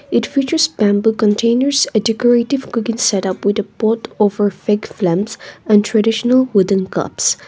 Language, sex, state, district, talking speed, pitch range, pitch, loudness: English, female, Nagaland, Kohima, 145 wpm, 205-235 Hz, 220 Hz, -15 LUFS